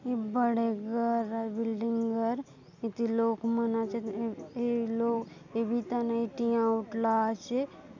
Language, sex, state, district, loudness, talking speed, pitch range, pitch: Halbi, female, Chhattisgarh, Bastar, -31 LUFS, 145 wpm, 225-235 Hz, 230 Hz